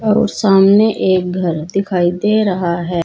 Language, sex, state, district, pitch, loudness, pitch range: Hindi, female, Uttar Pradesh, Saharanpur, 190 Hz, -14 LUFS, 175-210 Hz